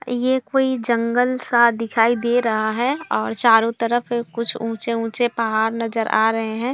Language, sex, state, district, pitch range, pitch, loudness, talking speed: Hindi, female, Bihar, Kishanganj, 225-245 Hz, 235 Hz, -19 LUFS, 160 wpm